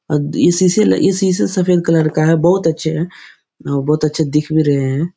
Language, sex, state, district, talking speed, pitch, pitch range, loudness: Hindi, male, Bihar, Jahanabad, 210 wpm, 160 Hz, 150-175 Hz, -15 LUFS